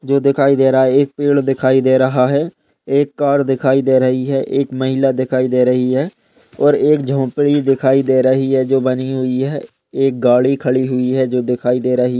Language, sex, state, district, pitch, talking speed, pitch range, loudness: Hindi, male, Uttar Pradesh, Budaun, 130 Hz, 210 wpm, 130-140 Hz, -15 LUFS